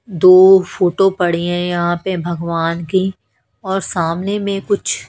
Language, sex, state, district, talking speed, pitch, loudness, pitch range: Hindi, female, Haryana, Charkhi Dadri, 140 wpm, 180 Hz, -15 LUFS, 170-190 Hz